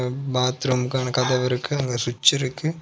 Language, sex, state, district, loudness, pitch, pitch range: Tamil, male, Tamil Nadu, Kanyakumari, -22 LUFS, 130 Hz, 125-135 Hz